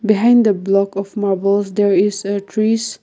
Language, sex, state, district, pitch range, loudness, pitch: English, female, Nagaland, Kohima, 195-215 Hz, -16 LUFS, 200 Hz